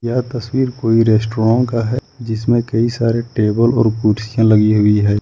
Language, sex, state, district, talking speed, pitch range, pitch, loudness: Hindi, male, Jharkhand, Ranchi, 170 wpm, 110-120 Hz, 115 Hz, -15 LUFS